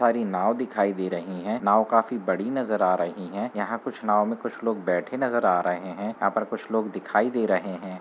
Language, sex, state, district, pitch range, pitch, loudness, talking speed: Hindi, male, Uttar Pradesh, Muzaffarnagar, 95-115 Hz, 110 Hz, -26 LUFS, 240 wpm